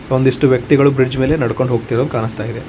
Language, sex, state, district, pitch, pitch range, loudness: Kannada, male, Karnataka, Koppal, 130 Hz, 120-135 Hz, -15 LUFS